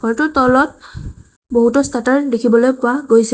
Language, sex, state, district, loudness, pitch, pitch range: Assamese, female, Assam, Sonitpur, -14 LUFS, 250 Hz, 235-270 Hz